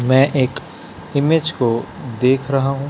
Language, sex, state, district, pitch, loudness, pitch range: Hindi, male, Chhattisgarh, Raipur, 135 Hz, -18 LUFS, 130-145 Hz